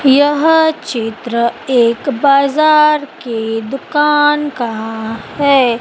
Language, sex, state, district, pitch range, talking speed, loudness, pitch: Hindi, female, Madhya Pradesh, Dhar, 235-295 Hz, 85 wpm, -13 LUFS, 275 Hz